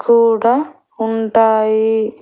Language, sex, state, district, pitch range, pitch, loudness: Telugu, female, Andhra Pradesh, Annamaya, 220-230 Hz, 225 Hz, -14 LUFS